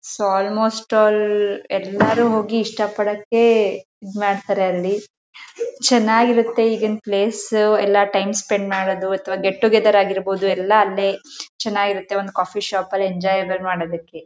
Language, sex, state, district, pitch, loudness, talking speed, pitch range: Kannada, female, Karnataka, Mysore, 205 Hz, -19 LUFS, 120 wpm, 195-215 Hz